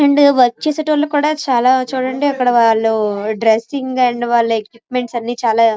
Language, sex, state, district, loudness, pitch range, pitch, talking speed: Telugu, female, Andhra Pradesh, Srikakulam, -15 LUFS, 230-280 Hz, 245 Hz, 145 wpm